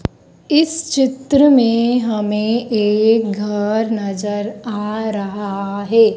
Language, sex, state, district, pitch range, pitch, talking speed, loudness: Hindi, female, Madhya Pradesh, Dhar, 210-240 Hz, 220 Hz, 95 wpm, -17 LUFS